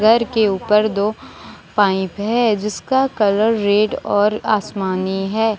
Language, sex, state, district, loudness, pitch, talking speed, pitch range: Hindi, female, Jharkhand, Deoghar, -17 LUFS, 210 Hz, 130 wpm, 200-220 Hz